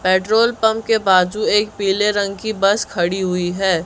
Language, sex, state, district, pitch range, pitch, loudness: Hindi, male, Chhattisgarh, Raipur, 185-215 Hz, 200 Hz, -17 LUFS